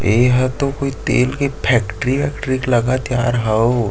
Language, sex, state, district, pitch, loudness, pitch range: Chhattisgarhi, male, Chhattisgarh, Sarguja, 125 Hz, -17 LUFS, 120-135 Hz